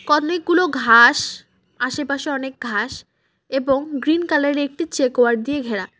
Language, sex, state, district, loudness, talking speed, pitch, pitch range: Bengali, female, West Bengal, Cooch Behar, -18 LUFS, 140 wpm, 280 Hz, 245-300 Hz